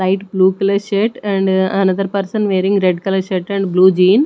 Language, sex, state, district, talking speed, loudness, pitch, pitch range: English, female, Odisha, Nuapada, 195 wpm, -15 LUFS, 195 Hz, 190-200 Hz